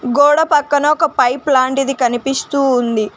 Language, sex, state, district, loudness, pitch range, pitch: Telugu, female, Telangana, Mahabubabad, -14 LUFS, 245-290 Hz, 270 Hz